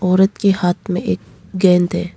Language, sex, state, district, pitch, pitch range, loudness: Hindi, female, Arunachal Pradesh, Lower Dibang Valley, 180 Hz, 175-190 Hz, -16 LUFS